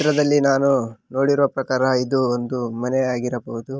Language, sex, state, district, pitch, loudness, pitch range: Kannada, male, Karnataka, Raichur, 130 Hz, -20 LUFS, 125-135 Hz